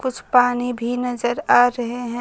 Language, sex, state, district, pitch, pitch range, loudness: Hindi, female, Bihar, Kaimur, 245 Hz, 240-245 Hz, -19 LUFS